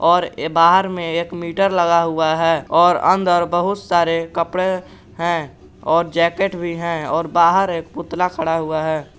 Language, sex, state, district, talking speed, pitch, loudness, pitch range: Hindi, male, Jharkhand, Garhwa, 165 wpm, 170 Hz, -18 LUFS, 165-175 Hz